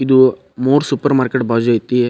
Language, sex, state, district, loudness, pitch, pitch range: Kannada, male, Karnataka, Bijapur, -15 LUFS, 130 Hz, 120-135 Hz